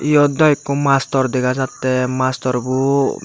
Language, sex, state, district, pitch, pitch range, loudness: Chakma, male, Tripura, Dhalai, 130 Hz, 130-140 Hz, -17 LUFS